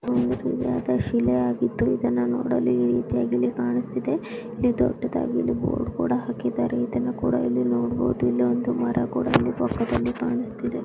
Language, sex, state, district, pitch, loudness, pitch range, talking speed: Kannada, female, Karnataka, Gulbarga, 120 Hz, -24 LUFS, 120-125 Hz, 145 wpm